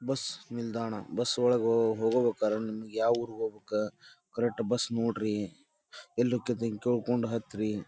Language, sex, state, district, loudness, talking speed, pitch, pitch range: Kannada, male, Karnataka, Dharwad, -31 LUFS, 135 wpm, 115 Hz, 110-120 Hz